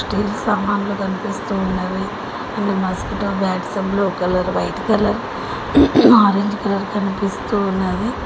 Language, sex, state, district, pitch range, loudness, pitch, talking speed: Telugu, female, Telangana, Mahabubabad, 190-205 Hz, -18 LUFS, 200 Hz, 110 wpm